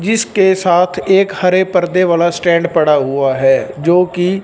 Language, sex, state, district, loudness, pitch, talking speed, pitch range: Hindi, male, Punjab, Fazilka, -13 LUFS, 175 Hz, 150 wpm, 170-190 Hz